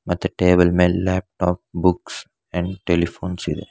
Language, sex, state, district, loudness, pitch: Kannada, male, Karnataka, Bangalore, -20 LUFS, 90 Hz